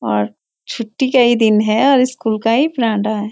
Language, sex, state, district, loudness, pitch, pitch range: Hindi, female, Uttarakhand, Uttarkashi, -15 LUFS, 225 Hz, 215-250 Hz